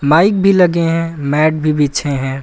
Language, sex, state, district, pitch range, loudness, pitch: Hindi, male, Uttar Pradesh, Lucknow, 145-170 Hz, -14 LUFS, 155 Hz